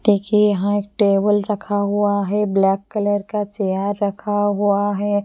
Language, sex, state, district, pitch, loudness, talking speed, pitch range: Hindi, female, Punjab, Pathankot, 205 Hz, -19 LUFS, 150 wpm, 200-205 Hz